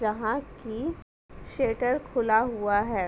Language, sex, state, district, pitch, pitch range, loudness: Hindi, female, Uttar Pradesh, Etah, 225 Hz, 215-250 Hz, -28 LUFS